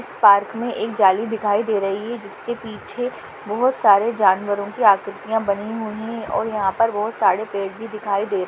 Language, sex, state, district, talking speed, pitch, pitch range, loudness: Hindi, female, Chhattisgarh, Bastar, 200 wpm, 210 Hz, 200-225 Hz, -20 LUFS